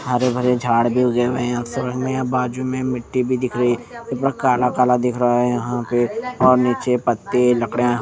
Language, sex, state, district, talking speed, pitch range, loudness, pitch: Hindi, male, Punjab, Fazilka, 195 wpm, 120-130 Hz, -19 LUFS, 125 Hz